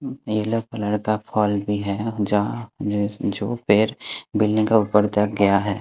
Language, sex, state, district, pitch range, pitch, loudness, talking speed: Hindi, male, Haryana, Rohtak, 105-110 Hz, 105 Hz, -22 LUFS, 155 wpm